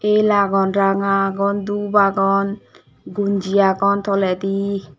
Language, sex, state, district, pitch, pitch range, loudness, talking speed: Chakma, female, Tripura, Dhalai, 200 Hz, 195-200 Hz, -18 LUFS, 110 wpm